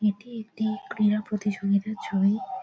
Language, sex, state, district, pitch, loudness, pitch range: Bengali, female, West Bengal, Jhargram, 210 Hz, -27 LUFS, 205-220 Hz